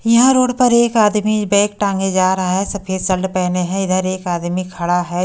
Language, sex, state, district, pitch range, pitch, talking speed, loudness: Hindi, female, Delhi, New Delhi, 185-210 Hz, 190 Hz, 215 wpm, -16 LUFS